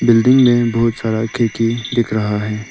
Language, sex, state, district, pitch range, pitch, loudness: Hindi, male, Arunachal Pradesh, Lower Dibang Valley, 110-120 Hz, 115 Hz, -15 LUFS